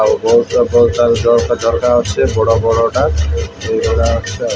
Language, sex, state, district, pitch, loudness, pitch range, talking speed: Odia, male, Odisha, Malkangiri, 115 Hz, -13 LUFS, 95-125 Hz, 170 wpm